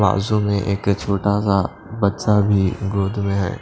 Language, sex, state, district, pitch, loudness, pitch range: Hindi, male, Maharashtra, Washim, 100 Hz, -19 LUFS, 100-105 Hz